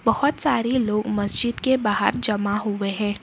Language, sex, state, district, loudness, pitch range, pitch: Hindi, female, Karnataka, Bangalore, -22 LUFS, 205-240 Hz, 210 Hz